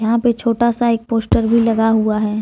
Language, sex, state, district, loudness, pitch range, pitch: Hindi, female, Jharkhand, Deoghar, -16 LUFS, 220-235 Hz, 230 Hz